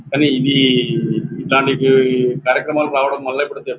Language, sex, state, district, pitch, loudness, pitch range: Telugu, male, Andhra Pradesh, Anantapur, 135 Hz, -16 LUFS, 130-150 Hz